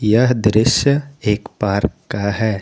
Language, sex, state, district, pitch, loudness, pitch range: Hindi, male, Jharkhand, Garhwa, 110 Hz, -17 LUFS, 105-125 Hz